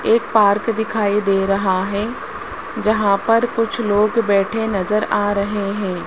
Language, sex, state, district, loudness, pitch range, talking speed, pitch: Hindi, male, Rajasthan, Jaipur, -18 LUFS, 200-225 Hz, 150 wpm, 210 Hz